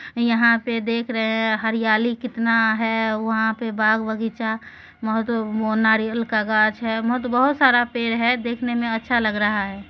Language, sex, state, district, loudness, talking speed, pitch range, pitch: Maithili, female, Bihar, Supaul, -20 LUFS, 175 wpm, 220-235 Hz, 225 Hz